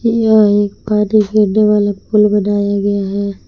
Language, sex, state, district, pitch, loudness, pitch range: Hindi, female, Jharkhand, Palamu, 210 Hz, -13 LUFS, 200-215 Hz